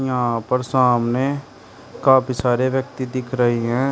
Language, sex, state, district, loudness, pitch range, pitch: Hindi, male, Uttar Pradesh, Shamli, -19 LUFS, 120-130 Hz, 130 Hz